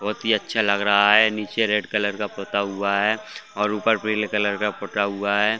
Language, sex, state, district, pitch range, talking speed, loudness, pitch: Hindi, male, Chhattisgarh, Bastar, 100-105 Hz, 225 wpm, -21 LUFS, 105 Hz